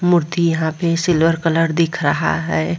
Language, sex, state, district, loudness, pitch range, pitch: Hindi, female, Bihar, Vaishali, -17 LUFS, 145-170 Hz, 165 Hz